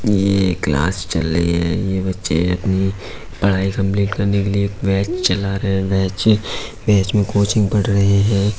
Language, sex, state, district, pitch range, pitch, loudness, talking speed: Hindi, male, Uttar Pradesh, Budaun, 95-100 Hz, 100 Hz, -18 LUFS, 175 wpm